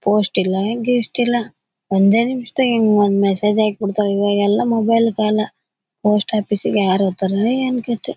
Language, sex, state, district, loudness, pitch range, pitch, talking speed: Kannada, female, Karnataka, Bellary, -17 LUFS, 200-230 Hz, 210 Hz, 155 wpm